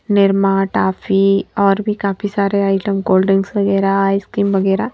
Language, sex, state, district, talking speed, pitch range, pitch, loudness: Hindi, female, Madhya Pradesh, Bhopal, 135 wpm, 195-200 Hz, 195 Hz, -15 LUFS